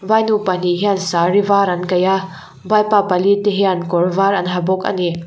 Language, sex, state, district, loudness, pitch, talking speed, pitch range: Mizo, female, Mizoram, Aizawl, -16 LUFS, 190 Hz, 195 wpm, 180-200 Hz